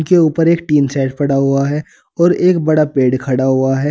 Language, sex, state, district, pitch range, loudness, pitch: Hindi, male, Uttar Pradesh, Saharanpur, 135-165 Hz, -14 LUFS, 145 Hz